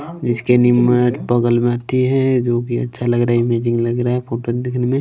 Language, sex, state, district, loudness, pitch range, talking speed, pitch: Hindi, male, Chhattisgarh, Raipur, -17 LUFS, 120-125 Hz, 230 wpm, 120 Hz